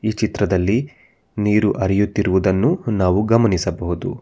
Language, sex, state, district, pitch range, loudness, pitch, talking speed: Kannada, male, Karnataka, Bangalore, 95-115 Hz, -18 LUFS, 105 Hz, 85 wpm